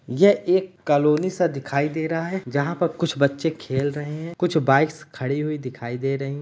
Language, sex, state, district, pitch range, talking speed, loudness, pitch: Hindi, male, Uttar Pradesh, Ghazipur, 140-170 Hz, 215 wpm, -23 LUFS, 150 Hz